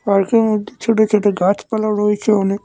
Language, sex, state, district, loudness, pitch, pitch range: Bengali, male, West Bengal, Cooch Behar, -16 LUFS, 210 Hz, 200-215 Hz